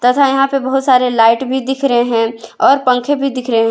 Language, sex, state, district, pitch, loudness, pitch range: Hindi, female, Jharkhand, Ranchi, 255 Hz, -13 LUFS, 240-270 Hz